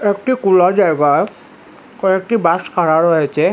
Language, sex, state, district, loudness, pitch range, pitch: Bengali, male, Assam, Hailakandi, -14 LUFS, 165-205 Hz, 190 Hz